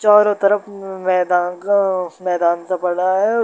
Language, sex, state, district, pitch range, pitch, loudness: Hindi, male, Bihar, Darbhanga, 180-200 Hz, 185 Hz, -17 LUFS